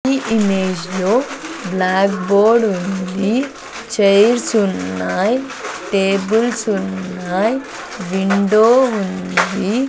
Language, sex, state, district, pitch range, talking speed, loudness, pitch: Telugu, female, Andhra Pradesh, Sri Satya Sai, 190-230 Hz, 75 wpm, -17 LUFS, 200 Hz